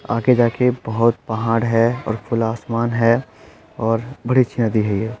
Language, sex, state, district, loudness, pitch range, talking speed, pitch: Hindi, male, Uttar Pradesh, Etah, -19 LUFS, 115-120 Hz, 175 wpm, 115 Hz